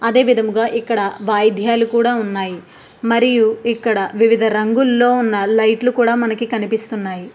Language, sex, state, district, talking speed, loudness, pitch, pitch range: Telugu, female, Andhra Pradesh, Krishna, 105 wpm, -16 LUFS, 225 Hz, 215-235 Hz